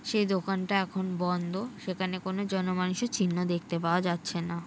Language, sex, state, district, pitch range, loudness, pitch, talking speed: Bengali, female, West Bengal, Kolkata, 175-195 Hz, -30 LUFS, 185 Hz, 180 wpm